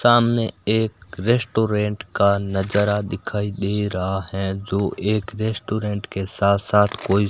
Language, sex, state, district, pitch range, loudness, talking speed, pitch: Hindi, male, Rajasthan, Bikaner, 100-110 Hz, -21 LUFS, 130 wpm, 105 Hz